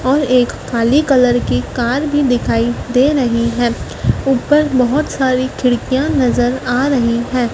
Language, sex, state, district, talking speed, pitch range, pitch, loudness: Hindi, female, Madhya Pradesh, Dhar, 150 wpm, 245-270 Hz, 255 Hz, -15 LUFS